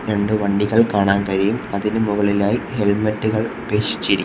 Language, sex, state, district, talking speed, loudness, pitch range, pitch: Malayalam, male, Kerala, Kollam, 115 wpm, -19 LUFS, 100-110 Hz, 105 Hz